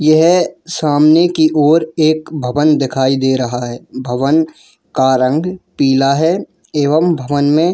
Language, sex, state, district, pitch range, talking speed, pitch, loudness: Hindi, male, Jharkhand, Jamtara, 135-160 Hz, 140 wpm, 150 Hz, -14 LUFS